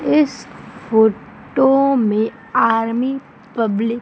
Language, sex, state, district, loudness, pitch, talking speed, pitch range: Hindi, female, Madhya Pradesh, Umaria, -17 LUFS, 230 Hz, 90 wpm, 220-265 Hz